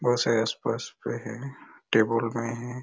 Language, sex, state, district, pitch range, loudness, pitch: Hindi, male, Chhattisgarh, Raigarh, 115-120 Hz, -27 LUFS, 115 Hz